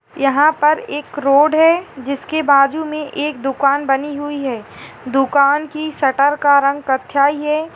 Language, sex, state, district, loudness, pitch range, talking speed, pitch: Hindi, female, Chhattisgarh, Rajnandgaon, -16 LUFS, 275-300 Hz, 155 wpm, 285 Hz